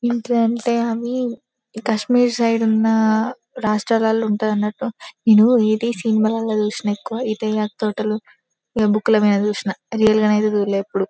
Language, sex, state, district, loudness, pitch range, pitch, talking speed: Telugu, female, Telangana, Karimnagar, -19 LUFS, 215-235 Hz, 220 Hz, 145 wpm